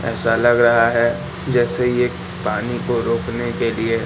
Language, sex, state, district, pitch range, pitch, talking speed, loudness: Hindi, male, Madhya Pradesh, Katni, 115-125 Hz, 115 Hz, 160 wpm, -18 LUFS